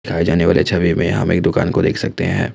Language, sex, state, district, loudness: Hindi, male, Assam, Kamrup Metropolitan, -16 LUFS